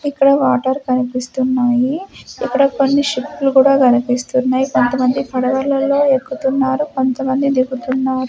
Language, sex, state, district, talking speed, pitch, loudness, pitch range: Telugu, female, Andhra Pradesh, Sri Satya Sai, 95 wpm, 265 Hz, -16 LUFS, 255-275 Hz